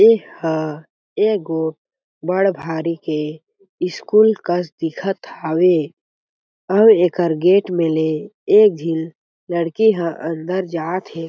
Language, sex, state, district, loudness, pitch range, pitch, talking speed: Chhattisgarhi, male, Chhattisgarh, Jashpur, -18 LUFS, 160-195 Hz, 170 Hz, 110 wpm